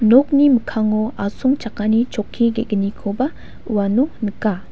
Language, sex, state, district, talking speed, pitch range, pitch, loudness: Garo, female, Meghalaya, West Garo Hills, 90 wpm, 210-250 Hz, 220 Hz, -19 LUFS